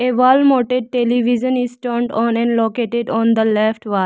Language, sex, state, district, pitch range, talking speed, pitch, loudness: English, female, Arunachal Pradesh, Lower Dibang Valley, 225-250 Hz, 190 wpm, 240 Hz, -16 LUFS